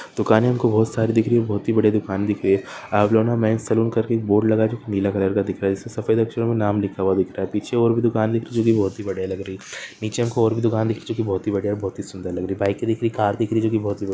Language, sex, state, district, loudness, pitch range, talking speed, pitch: Hindi, male, Maharashtra, Solapur, -21 LUFS, 100-115 Hz, 320 wpm, 110 Hz